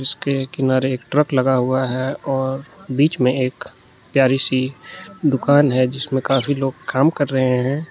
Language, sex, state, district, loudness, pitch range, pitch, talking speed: Hindi, male, Jharkhand, Garhwa, -19 LUFS, 130-140 Hz, 130 Hz, 165 wpm